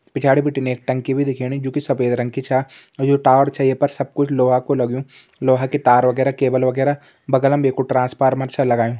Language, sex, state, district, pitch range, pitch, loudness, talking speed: Hindi, male, Uttarakhand, Tehri Garhwal, 130-140 Hz, 135 Hz, -18 LUFS, 235 wpm